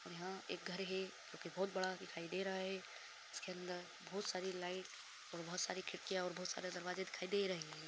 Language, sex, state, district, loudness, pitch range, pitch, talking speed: Hindi, male, Bihar, Darbhanga, -45 LUFS, 180-190 Hz, 185 Hz, 220 wpm